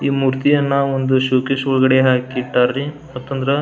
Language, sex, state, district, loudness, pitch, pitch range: Kannada, male, Karnataka, Belgaum, -17 LUFS, 135 Hz, 130-140 Hz